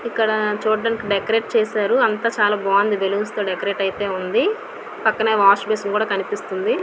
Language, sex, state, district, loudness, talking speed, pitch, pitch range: Telugu, female, Andhra Pradesh, Visakhapatnam, -19 LUFS, 130 wpm, 210 Hz, 200-225 Hz